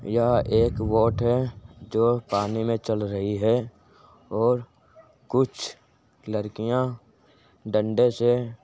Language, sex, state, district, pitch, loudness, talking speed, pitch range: Hindi, male, Uttar Pradesh, Jyotiba Phule Nagar, 115 Hz, -25 LUFS, 110 wpm, 110-125 Hz